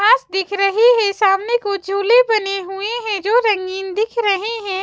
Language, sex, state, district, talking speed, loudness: Hindi, female, Chhattisgarh, Raipur, 185 wpm, -17 LUFS